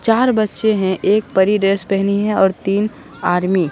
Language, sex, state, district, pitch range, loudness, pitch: Hindi, male, Bihar, Katihar, 190-215 Hz, -16 LUFS, 200 Hz